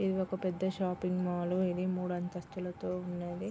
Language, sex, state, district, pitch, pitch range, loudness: Telugu, female, Andhra Pradesh, Srikakulam, 180 Hz, 180-185 Hz, -35 LUFS